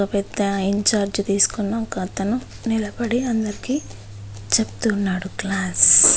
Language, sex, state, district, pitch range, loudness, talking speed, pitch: Telugu, female, Andhra Pradesh, Visakhapatnam, 185-220 Hz, -20 LUFS, 95 wpm, 200 Hz